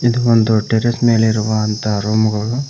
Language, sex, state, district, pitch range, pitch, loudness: Kannada, male, Karnataka, Koppal, 110-120 Hz, 110 Hz, -15 LUFS